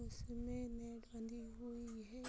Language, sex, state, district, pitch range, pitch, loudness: Hindi, female, Uttar Pradesh, Budaun, 225-240 Hz, 235 Hz, -50 LUFS